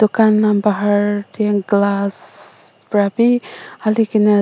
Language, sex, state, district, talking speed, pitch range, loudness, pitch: Nagamese, female, Nagaland, Dimapur, 70 wpm, 205-215 Hz, -16 LUFS, 210 Hz